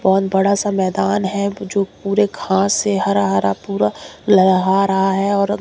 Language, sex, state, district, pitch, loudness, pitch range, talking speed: Hindi, female, Bihar, Katihar, 195 Hz, -17 LUFS, 190-200 Hz, 170 wpm